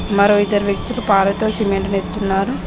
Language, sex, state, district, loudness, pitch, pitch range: Telugu, female, Telangana, Mahabubabad, -17 LUFS, 200 Hz, 195-210 Hz